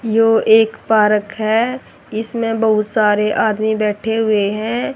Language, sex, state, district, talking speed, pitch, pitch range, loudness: Hindi, female, Haryana, Rohtak, 135 wpm, 220 Hz, 210-225 Hz, -16 LUFS